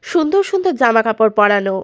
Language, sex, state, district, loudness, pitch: Bengali, female, West Bengal, Paschim Medinipur, -14 LUFS, 225 Hz